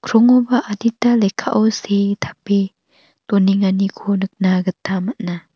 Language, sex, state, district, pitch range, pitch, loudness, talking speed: Garo, female, Meghalaya, North Garo Hills, 190-225 Hz, 200 Hz, -17 LUFS, 95 wpm